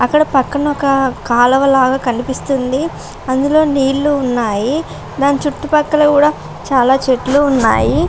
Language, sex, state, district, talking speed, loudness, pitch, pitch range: Telugu, female, Andhra Pradesh, Srikakulam, 105 wpm, -14 LUFS, 275 Hz, 255-290 Hz